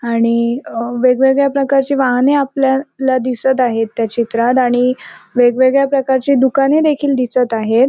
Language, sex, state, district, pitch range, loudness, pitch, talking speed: Marathi, female, Maharashtra, Sindhudurg, 240-275 Hz, -14 LUFS, 255 Hz, 130 wpm